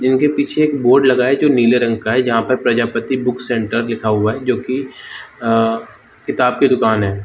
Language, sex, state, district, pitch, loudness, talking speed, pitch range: Hindi, male, Jharkhand, Jamtara, 120 Hz, -16 LUFS, 205 wpm, 115-130 Hz